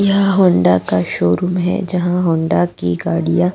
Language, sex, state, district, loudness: Hindi, female, Chhattisgarh, Jashpur, -15 LUFS